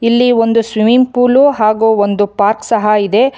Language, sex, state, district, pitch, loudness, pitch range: Kannada, female, Karnataka, Bangalore, 225 Hz, -11 LUFS, 210-245 Hz